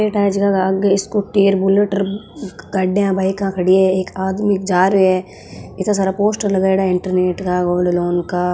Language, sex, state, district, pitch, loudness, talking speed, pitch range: Marwari, female, Rajasthan, Nagaur, 190 Hz, -16 LUFS, 175 wpm, 185-200 Hz